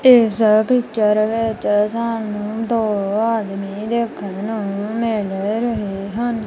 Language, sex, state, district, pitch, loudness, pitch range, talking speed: Punjabi, female, Punjab, Kapurthala, 215 Hz, -19 LUFS, 205-230 Hz, 100 wpm